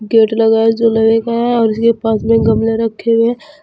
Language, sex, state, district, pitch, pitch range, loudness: Hindi, female, Uttar Pradesh, Saharanpur, 225 Hz, 225-230 Hz, -13 LUFS